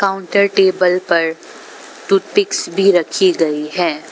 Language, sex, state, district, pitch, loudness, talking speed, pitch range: Hindi, female, Arunachal Pradesh, Papum Pare, 185 Hz, -15 LUFS, 130 wpm, 170-200 Hz